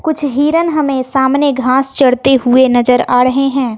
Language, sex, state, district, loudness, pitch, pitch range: Hindi, female, Bihar, West Champaran, -12 LUFS, 265 Hz, 255-285 Hz